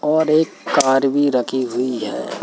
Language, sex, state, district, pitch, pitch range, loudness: Hindi, male, Madhya Pradesh, Bhopal, 135 Hz, 125-150 Hz, -18 LUFS